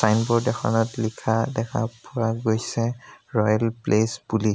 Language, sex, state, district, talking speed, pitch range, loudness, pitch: Assamese, male, Assam, Sonitpur, 120 wpm, 110-115 Hz, -24 LUFS, 115 Hz